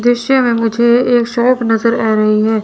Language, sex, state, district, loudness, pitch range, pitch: Hindi, female, Chandigarh, Chandigarh, -12 LUFS, 225-245 Hz, 235 Hz